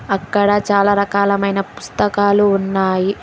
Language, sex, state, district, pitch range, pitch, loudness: Telugu, female, Telangana, Hyderabad, 195-205 Hz, 200 Hz, -16 LUFS